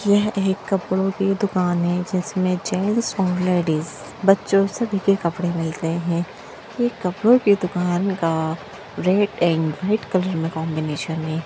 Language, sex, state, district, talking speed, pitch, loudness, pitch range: Hindi, female, Bihar, Gopalganj, 145 wpm, 185 Hz, -21 LUFS, 170-200 Hz